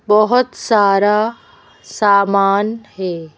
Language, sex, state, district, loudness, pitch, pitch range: Hindi, female, Madhya Pradesh, Bhopal, -15 LUFS, 210 Hz, 200-225 Hz